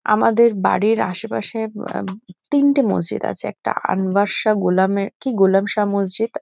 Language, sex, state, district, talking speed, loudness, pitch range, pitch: Bengali, female, West Bengal, North 24 Parganas, 130 wpm, -19 LUFS, 195-225 Hz, 205 Hz